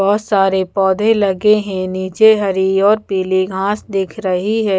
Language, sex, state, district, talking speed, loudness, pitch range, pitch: Hindi, female, Bihar, Patna, 165 wpm, -15 LUFS, 190-210 Hz, 195 Hz